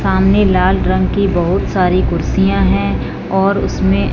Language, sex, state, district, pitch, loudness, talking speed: Hindi, female, Punjab, Fazilka, 185 Hz, -14 LUFS, 145 wpm